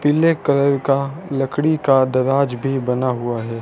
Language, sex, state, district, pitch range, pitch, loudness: Hindi, male, Rajasthan, Bikaner, 130-145 Hz, 135 Hz, -18 LUFS